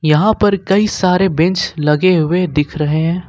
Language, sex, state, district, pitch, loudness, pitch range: Hindi, male, Jharkhand, Ranchi, 175 Hz, -14 LUFS, 155-190 Hz